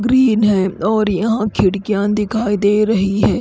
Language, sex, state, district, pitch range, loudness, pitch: Hindi, female, Odisha, Khordha, 200-220 Hz, -16 LUFS, 210 Hz